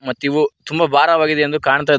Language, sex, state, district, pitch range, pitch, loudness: Kannada, male, Karnataka, Koppal, 140-155 Hz, 150 Hz, -16 LUFS